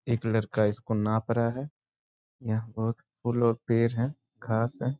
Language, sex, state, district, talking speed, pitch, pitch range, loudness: Hindi, male, Bihar, Sitamarhi, 170 wpm, 115 Hz, 110-120 Hz, -29 LUFS